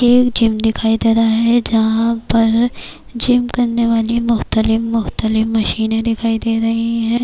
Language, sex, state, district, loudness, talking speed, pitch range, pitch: Urdu, female, Bihar, Kishanganj, -15 LUFS, 150 wpm, 225-235 Hz, 230 Hz